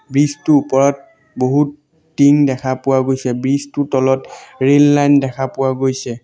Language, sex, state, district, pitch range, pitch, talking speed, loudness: Assamese, male, Assam, Sonitpur, 130-145 Hz, 135 Hz, 155 wpm, -15 LUFS